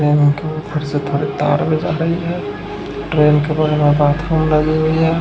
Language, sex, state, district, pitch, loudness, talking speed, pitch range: Hindi, male, Odisha, Khordha, 155 Hz, -16 LUFS, 205 wpm, 145-155 Hz